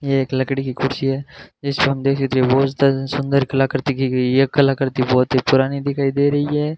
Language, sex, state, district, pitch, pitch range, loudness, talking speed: Hindi, male, Rajasthan, Bikaner, 135 Hz, 135-140 Hz, -18 LUFS, 205 wpm